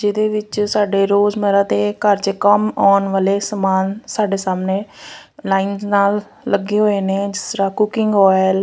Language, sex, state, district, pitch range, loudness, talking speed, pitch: Punjabi, female, Punjab, Fazilka, 195-210 Hz, -17 LUFS, 160 wpm, 200 Hz